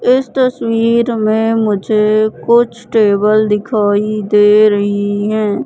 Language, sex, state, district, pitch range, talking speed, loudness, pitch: Hindi, female, Madhya Pradesh, Katni, 210-230 Hz, 105 wpm, -13 LUFS, 215 Hz